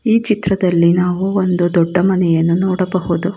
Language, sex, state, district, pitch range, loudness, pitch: Kannada, female, Karnataka, Bangalore, 175-190 Hz, -15 LUFS, 180 Hz